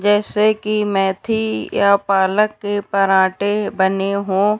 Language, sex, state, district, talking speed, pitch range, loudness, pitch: Hindi, female, Uttar Pradesh, Deoria, 115 wpm, 195-210 Hz, -17 LUFS, 200 Hz